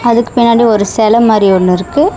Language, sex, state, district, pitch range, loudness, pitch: Tamil, female, Tamil Nadu, Chennai, 205-235 Hz, -9 LUFS, 230 Hz